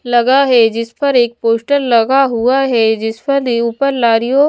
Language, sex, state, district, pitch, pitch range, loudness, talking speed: Hindi, female, Bihar, Kaimur, 245 Hz, 230-270 Hz, -13 LUFS, 175 wpm